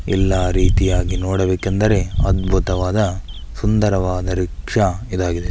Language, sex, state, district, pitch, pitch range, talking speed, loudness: Kannada, male, Karnataka, Belgaum, 95 Hz, 90-95 Hz, 75 wpm, -19 LUFS